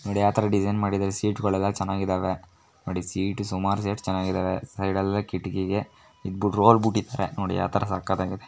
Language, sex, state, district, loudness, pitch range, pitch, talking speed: Kannada, female, Karnataka, Mysore, -26 LUFS, 95-100 Hz, 95 Hz, 135 wpm